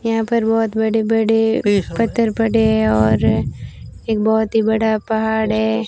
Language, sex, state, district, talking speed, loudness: Hindi, female, Rajasthan, Bikaner, 155 wpm, -17 LUFS